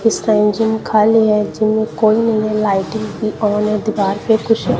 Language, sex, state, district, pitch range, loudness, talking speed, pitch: Hindi, female, Punjab, Kapurthala, 210-220 Hz, -15 LUFS, 165 wpm, 215 Hz